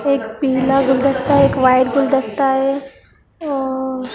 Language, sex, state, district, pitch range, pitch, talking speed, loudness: Hindi, female, Maharashtra, Mumbai Suburban, 260-275 Hz, 270 Hz, 130 wpm, -16 LUFS